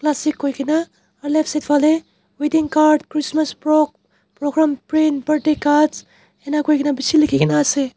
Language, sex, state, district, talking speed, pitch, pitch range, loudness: Nagamese, male, Nagaland, Dimapur, 145 wpm, 300 Hz, 290-310 Hz, -18 LUFS